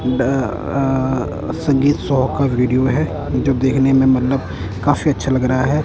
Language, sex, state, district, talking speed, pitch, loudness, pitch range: Hindi, male, Punjab, Kapurthala, 155 wpm, 130 Hz, -17 LUFS, 125-135 Hz